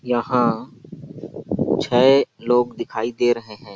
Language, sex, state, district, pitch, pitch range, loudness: Hindi, male, Chhattisgarh, Balrampur, 120 Hz, 115-125 Hz, -20 LUFS